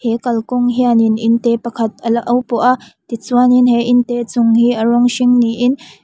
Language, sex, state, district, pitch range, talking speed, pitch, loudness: Mizo, female, Mizoram, Aizawl, 230-245 Hz, 240 wpm, 240 Hz, -14 LUFS